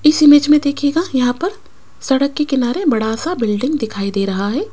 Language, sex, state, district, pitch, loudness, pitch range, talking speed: Hindi, female, Rajasthan, Jaipur, 280 Hz, -16 LUFS, 225-300 Hz, 190 wpm